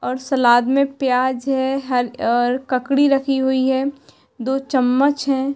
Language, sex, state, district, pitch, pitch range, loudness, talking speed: Hindi, female, Uttar Pradesh, Hamirpur, 265 Hz, 250-275 Hz, -18 LUFS, 150 wpm